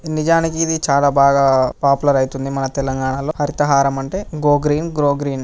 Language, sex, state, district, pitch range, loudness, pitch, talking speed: Telugu, male, Telangana, Karimnagar, 135-155 Hz, -17 LUFS, 140 Hz, 190 wpm